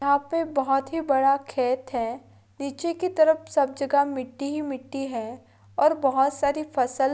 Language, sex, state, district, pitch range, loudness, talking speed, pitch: Hindi, female, Andhra Pradesh, Anantapur, 260-290 Hz, -25 LUFS, 170 wpm, 275 Hz